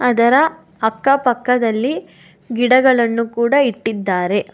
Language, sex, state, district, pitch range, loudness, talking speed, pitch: Kannada, female, Karnataka, Bangalore, 220-255 Hz, -16 LUFS, 65 wpm, 235 Hz